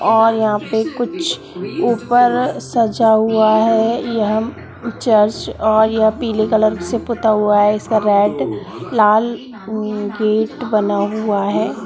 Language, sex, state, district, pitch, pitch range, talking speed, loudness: Hindi, female, Bihar, Gaya, 220 Hz, 215-230 Hz, 125 wpm, -16 LUFS